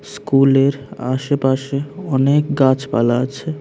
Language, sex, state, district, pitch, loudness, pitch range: Bengali, male, Tripura, West Tripura, 135 Hz, -17 LUFS, 130-140 Hz